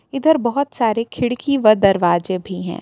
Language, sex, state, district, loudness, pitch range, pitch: Hindi, female, Jharkhand, Palamu, -17 LUFS, 185-270 Hz, 230 Hz